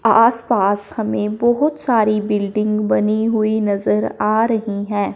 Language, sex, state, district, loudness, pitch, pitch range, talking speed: Hindi, male, Punjab, Fazilka, -17 LUFS, 215 Hz, 205-225 Hz, 130 wpm